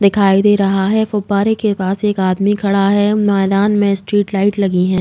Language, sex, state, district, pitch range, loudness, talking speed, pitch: Hindi, female, Uttar Pradesh, Jalaun, 195-205 Hz, -14 LUFS, 205 wpm, 200 Hz